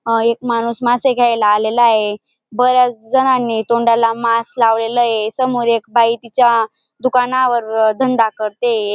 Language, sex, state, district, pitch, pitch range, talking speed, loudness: Marathi, female, Maharashtra, Dhule, 235 Hz, 225-245 Hz, 135 wpm, -15 LUFS